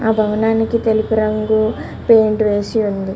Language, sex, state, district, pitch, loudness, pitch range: Telugu, male, Andhra Pradesh, Guntur, 220 Hz, -16 LUFS, 215-225 Hz